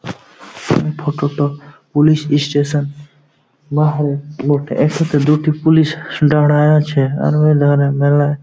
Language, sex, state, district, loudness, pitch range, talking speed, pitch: Bengali, male, West Bengal, Jhargram, -15 LUFS, 145-150 Hz, 115 wpm, 145 Hz